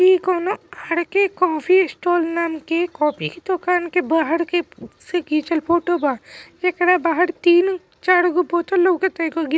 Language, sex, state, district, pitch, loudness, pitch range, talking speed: Bhojpuri, female, Bihar, East Champaran, 350 Hz, -19 LUFS, 330-365 Hz, 170 wpm